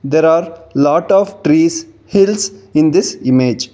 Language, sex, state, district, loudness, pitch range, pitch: English, male, Karnataka, Bangalore, -13 LUFS, 145-195 Hz, 160 Hz